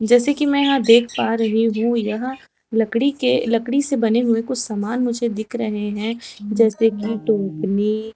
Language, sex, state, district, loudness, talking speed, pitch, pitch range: Hindi, female, Chhattisgarh, Raipur, -19 LUFS, 175 wpm, 230 Hz, 220-245 Hz